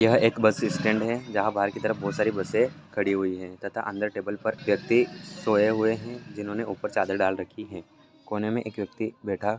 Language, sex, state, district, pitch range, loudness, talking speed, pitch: Hindi, male, Bihar, Saran, 100-115 Hz, -27 LUFS, 195 wpm, 105 Hz